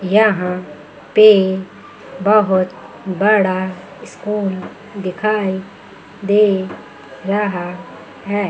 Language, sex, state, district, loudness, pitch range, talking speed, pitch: Hindi, female, Chandigarh, Chandigarh, -16 LUFS, 185-210 Hz, 65 wpm, 195 Hz